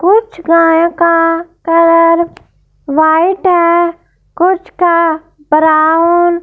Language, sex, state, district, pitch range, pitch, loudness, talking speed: Hindi, female, Punjab, Fazilka, 330-345 Hz, 335 Hz, -10 LUFS, 95 wpm